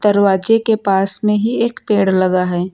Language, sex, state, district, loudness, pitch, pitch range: Hindi, female, Uttar Pradesh, Lucknow, -15 LUFS, 200 Hz, 190-220 Hz